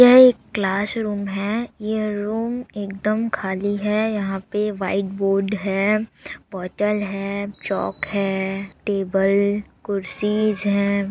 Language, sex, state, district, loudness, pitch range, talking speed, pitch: Hindi, female, Chhattisgarh, Raigarh, -22 LUFS, 195-210 Hz, 120 wpm, 200 Hz